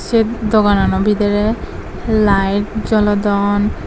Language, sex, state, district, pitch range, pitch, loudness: Chakma, female, Tripura, Dhalai, 205-215 Hz, 210 Hz, -15 LUFS